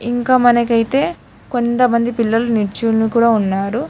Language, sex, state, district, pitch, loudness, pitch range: Telugu, female, Telangana, Hyderabad, 235 Hz, -15 LUFS, 225-245 Hz